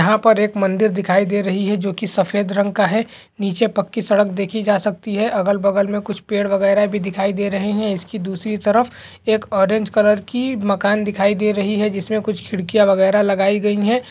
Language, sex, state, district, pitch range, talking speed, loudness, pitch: Hindi, male, Bihar, Jamui, 200-215 Hz, 210 wpm, -18 LUFS, 205 Hz